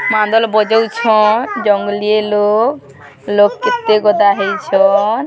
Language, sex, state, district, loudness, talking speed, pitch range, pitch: Odia, female, Odisha, Sambalpur, -13 LUFS, 105 wpm, 205-225 Hz, 215 Hz